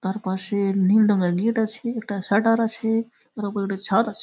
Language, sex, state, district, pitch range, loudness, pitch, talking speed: Bengali, male, West Bengal, Malda, 195-225 Hz, -22 LUFS, 210 Hz, 200 wpm